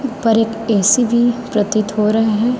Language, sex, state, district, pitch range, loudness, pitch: Hindi, female, Chhattisgarh, Raipur, 215-240 Hz, -15 LUFS, 225 Hz